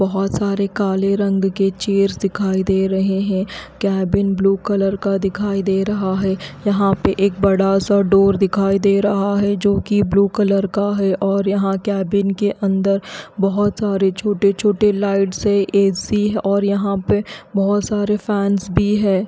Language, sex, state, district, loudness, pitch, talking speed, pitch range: Hindi, female, Haryana, Rohtak, -17 LUFS, 195 Hz, 170 wpm, 195-200 Hz